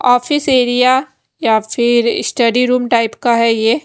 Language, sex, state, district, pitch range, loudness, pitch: Hindi, female, Haryana, Rohtak, 230-255 Hz, -13 LUFS, 245 Hz